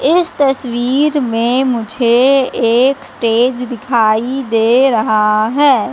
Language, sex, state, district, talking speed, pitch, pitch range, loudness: Hindi, female, Madhya Pradesh, Katni, 100 wpm, 245 Hz, 230-270 Hz, -13 LUFS